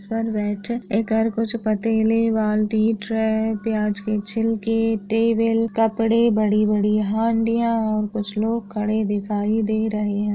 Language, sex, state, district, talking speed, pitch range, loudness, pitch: Hindi, female, Maharashtra, Sindhudurg, 105 wpm, 210-225 Hz, -21 LUFS, 220 Hz